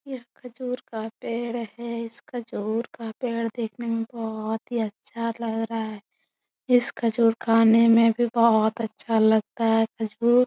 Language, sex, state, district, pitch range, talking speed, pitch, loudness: Hindi, female, Uttar Pradesh, Etah, 225-240 Hz, 160 wpm, 230 Hz, -24 LUFS